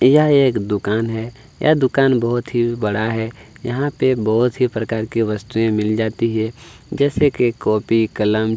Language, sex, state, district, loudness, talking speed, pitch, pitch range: Hindi, male, Chhattisgarh, Kabirdham, -18 LUFS, 170 wpm, 115 Hz, 110-125 Hz